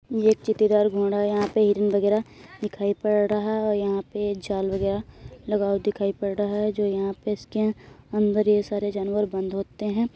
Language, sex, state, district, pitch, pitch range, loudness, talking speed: Hindi, female, Uttar Pradesh, Hamirpur, 205 Hz, 200-210 Hz, -24 LUFS, 195 wpm